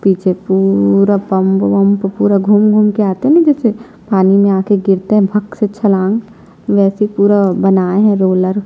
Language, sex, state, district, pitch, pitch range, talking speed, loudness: Hindi, female, Chhattisgarh, Jashpur, 200 Hz, 190-210 Hz, 175 wpm, -12 LUFS